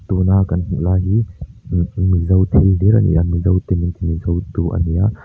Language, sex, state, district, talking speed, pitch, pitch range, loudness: Mizo, male, Mizoram, Aizawl, 215 wpm, 90 Hz, 85-95 Hz, -16 LUFS